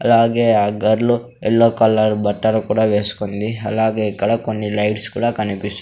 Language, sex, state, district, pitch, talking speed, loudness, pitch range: Telugu, male, Andhra Pradesh, Sri Satya Sai, 110 Hz, 145 wpm, -17 LUFS, 105-115 Hz